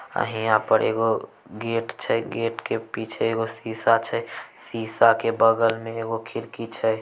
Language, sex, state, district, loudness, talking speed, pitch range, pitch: Maithili, male, Bihar, Samastipur, -24 LUFS, 165 wpm, 110-115 Hz, 115 Hz